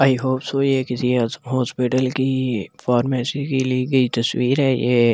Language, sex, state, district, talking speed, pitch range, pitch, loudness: Hindi, male, Delhi, New Delhi, 175 wpm, 125-130 Hz, 130 Hz, -20 LUFS